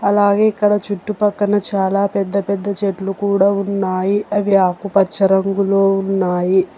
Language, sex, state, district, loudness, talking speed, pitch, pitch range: Telugu, male, Telangana, Hyderabad, -16 LUFS, 115 wpm, 200 Hz, 195-205 Hz